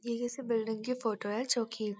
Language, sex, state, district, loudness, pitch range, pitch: Hindi, female, Uttarakhand, Uttarkashi, -34 LUFS, 220-240 Hz, 230 Hz